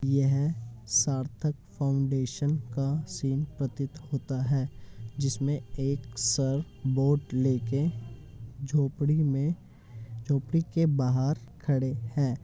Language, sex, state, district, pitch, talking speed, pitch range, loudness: Hindi, male, Uttar Pradesh, Hamirpur, 135 Hz, 95 wpm, 125-145 Hz, -29 LUFS